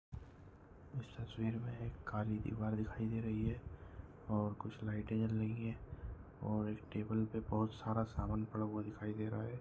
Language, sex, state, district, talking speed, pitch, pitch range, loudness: Hindi, male, Goa, North and South Goa, 180 wpm, 110 Hz, 105-110 Hz, -42 LUFS